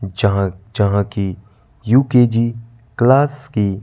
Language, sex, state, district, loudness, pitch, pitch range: Hindi, male, Madhya Pradesh, Bhopal, -16 LUFS, 115 Hz, 100-120 Hz